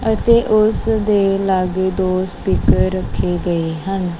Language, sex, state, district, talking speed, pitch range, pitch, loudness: Punjabi, female, Punjab, Kapurthala, 130 wpm, 185-215 Hz, 190 Hz, -17 LUFS